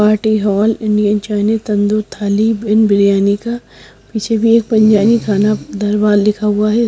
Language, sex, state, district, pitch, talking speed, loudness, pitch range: Hindi, female, Odisha, Sambalpur, 210 Hz, 155 wpm, -13 LUFS, 205-220 Hz